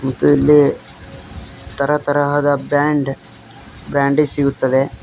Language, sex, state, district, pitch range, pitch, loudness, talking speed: Kannada, male, Karnataka, Koppal, 135-145 Hz, 140 Hz, -16 LUFS, 85 wpm